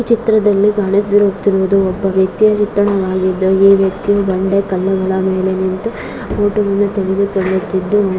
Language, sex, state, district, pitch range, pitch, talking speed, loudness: Kannada, female, Karnataka, Dakshina Kannada, 190-205 Hz, 195 Hz, 110 wpm, -14 LUFS